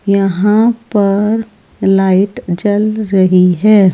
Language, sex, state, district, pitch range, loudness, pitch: Hindi, female, Rajasthan, Jaipur, 190-215 Hz, -12 LUFS, 200 Hz